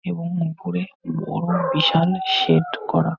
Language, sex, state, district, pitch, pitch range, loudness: Bengali, male, West Bengal, North 24 Parganas, 170 Hz, 160-185 Hz, -21 LUFS